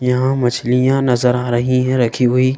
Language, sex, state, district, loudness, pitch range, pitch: Hindi, female, Madhya Pradesh, Bhopal, -15 LUFS, 125-130 Hz, 125 Hz